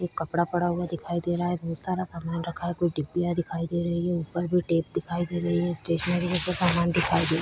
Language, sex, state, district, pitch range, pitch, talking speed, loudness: Hindi, female, Chhattisgarh, Korba, 170-175 Hz, 175 Hz, 260 wpm, -26 LUFS